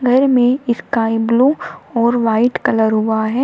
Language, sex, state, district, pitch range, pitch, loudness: Hindi, female, Uttar Pradesh, Shamli, 225-255 Hz, 235 Hz, -15 LUFS